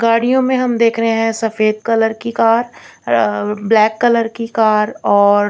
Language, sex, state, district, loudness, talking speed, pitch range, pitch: Hindi, female, Chandigarh, Chandigarh, -15 LUFS, 165 wpm, 215-230 Hz, 225 Hz